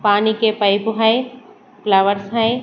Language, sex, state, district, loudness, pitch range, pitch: Hindi, female, Maharashtra, Mumbai Suburban, -17 LUFS, 205-225 Hz, 220 Hz